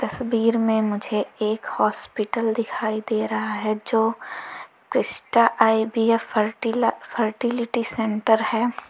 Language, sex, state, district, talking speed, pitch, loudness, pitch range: Hindi, female, Uttar Pradesh, Lalitpur, 110 wpm, 225 Hz, -22 LUFS, 215-230 Hz